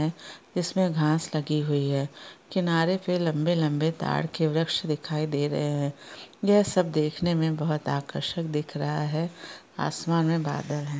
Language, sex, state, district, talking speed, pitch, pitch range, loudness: Hindi, female, Chhattisgarh, Bastar, 160 wpm, 155 Hz, 150-170 Hz, -27 LUFS